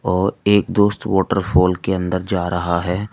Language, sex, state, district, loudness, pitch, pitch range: Hindi, male, Uttar Pradesh, Saharanpur, -18 LUFS, 95 Hz, 90-100 Hz